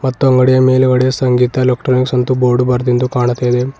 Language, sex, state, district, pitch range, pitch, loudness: Kannada, male, Karnataka, Bidar, 125-130 Hz, 125 Hz, -13 LUFS